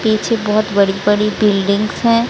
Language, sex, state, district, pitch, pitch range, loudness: Hindi, female, Odisha, Sambalpur, 210 Hz, 200-220 Hz, -15 LUFS